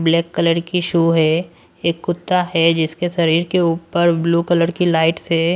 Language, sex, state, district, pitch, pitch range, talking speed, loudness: Hindi, male, Punjab, Pathankot, 170 Hz, 165-175 Hz, 185 wpm, -17 LUFS